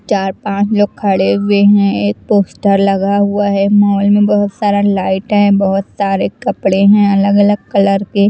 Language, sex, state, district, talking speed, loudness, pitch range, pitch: Hindi, female, Chandigarh, Chandigarh, 180 wpm, -12 LUFS, 195-205 Hz, 200 Hz